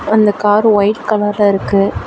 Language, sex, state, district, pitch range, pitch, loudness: Tamil, female, Tamil Nadu, Chennai, 205-215 Hz, 205 Hz, -13 LUFS